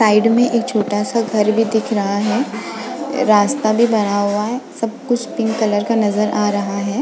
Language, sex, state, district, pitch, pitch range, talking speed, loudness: Hindi, female, Goa, North and South Goa, 220 Hz, 205-235 Hz, 205 wpm, -17 LUFS